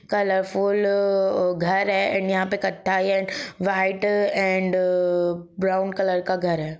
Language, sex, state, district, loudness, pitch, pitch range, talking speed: Hindi, female, Jharkhand, Jamtara, -22 LUFS, 190 Hz, 185-195 Hz, 150 wpm